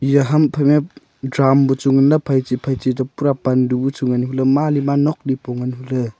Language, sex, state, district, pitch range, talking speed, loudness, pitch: Wancho, male, Arunachal Pradesh, Longding, 130-140 Hz, 270 wpm, -17 LUFS, 135 Hz